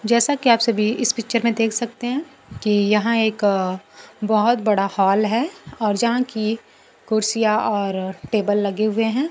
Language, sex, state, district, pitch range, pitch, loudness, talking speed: Hindi, female, Bihar, Kaimur, 205-235 Hz, 220 Hz, -20 LUFS, 170 wpm